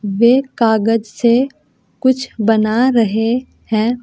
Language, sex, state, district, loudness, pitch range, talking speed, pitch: Hindi, female, Uttar Pradesh, Saharanpur, -15 LUFS, 220-250 Hz, 105 wpm, 235 Hz